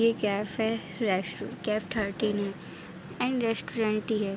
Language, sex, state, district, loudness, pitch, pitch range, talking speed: Hindi, female, Bihar, Araria, -30 LUFS, 215 Hz, 200-225 Hz, 125 wpm